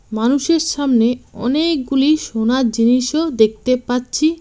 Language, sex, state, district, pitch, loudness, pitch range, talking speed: Bengali, female, West Bengal, Cooch Behar, 255 Hz, -16 LUFS, 235-305 Hz, 95 wpm